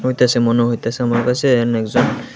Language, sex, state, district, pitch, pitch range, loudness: Bengali, male, Tripura, West Tripura, 120 Hz, 120-125 Hz, -16 LUFS